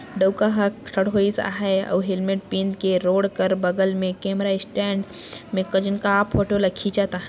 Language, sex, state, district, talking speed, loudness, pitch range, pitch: Chhattisgarhi, female, Chhattisgarh, Sarguja, 150 wpm, -22 LUFS, 190-200 Hz, 195 Hz